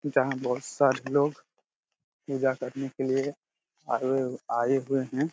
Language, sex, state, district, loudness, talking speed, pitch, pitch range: Hindi, male, Jharkhand, Jamtara, -28 LUFS, 145 wpm, 135 Hz, 130-140 Hz